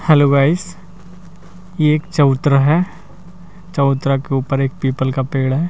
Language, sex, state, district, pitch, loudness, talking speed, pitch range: Hindi, male, Madhya Pradesh, Bhopal, 150 Hz, -16 LUFS, 145 wpm, 135-175 Hz